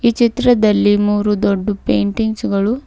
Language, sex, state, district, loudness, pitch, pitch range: Kannada, female, Karnataka, Bidar, -15 LUFS, 210 Hz, 205-235 Hz